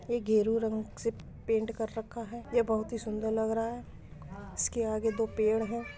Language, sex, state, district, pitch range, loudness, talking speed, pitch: Hindi, female, Uttar Pradesh, Muzaffarnagar, 220-230 Hz, -32 LUFS, 200 wpm, 225 Hz